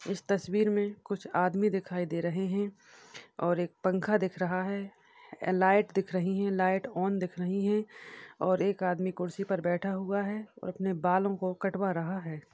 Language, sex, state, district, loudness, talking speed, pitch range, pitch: Hindi, female, Bihar, Purnia, -31 LUFS, 185 wpm, 185-200 Hz, 190 Hz